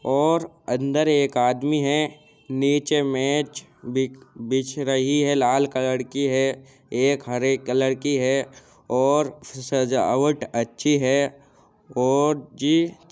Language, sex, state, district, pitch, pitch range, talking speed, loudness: Hindi, male, Uttar Pradesh, Jyotiba Phule Nagar, 135 Hz, 130-145 Hz, 120 wpm, -22 LUFS